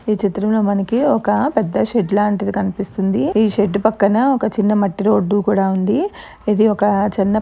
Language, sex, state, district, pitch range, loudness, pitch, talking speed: Telugu, female, Andhra Pradesh, Chittoor, 200-220 Hz, -17 LUFS, 210 Hz, 130 wpm